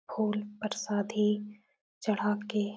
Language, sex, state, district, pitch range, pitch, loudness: Hindi, female, Uttar Pradesh, Etah, 210-215 Hz, 210 Hz, -32 LUFS